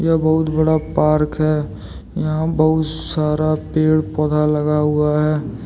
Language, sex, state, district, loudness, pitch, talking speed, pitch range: Hindi, male, Jharkhand, Deoghar, -17 LUFS, 155 Hz, 140 wpm, 150-155 Hz